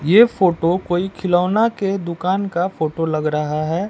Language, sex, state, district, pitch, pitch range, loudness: Hindi, male, Bihar, West Champaran, 180 Hz, 165-195 Hz, -19 LUFS